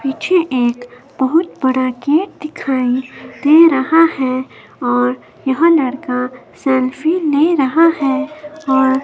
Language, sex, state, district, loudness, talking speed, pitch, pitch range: Hindi, female, Himachal Pradesh, Shimla, -15 LUFS, 120 wpm, 270 Hz, 255-315 Hz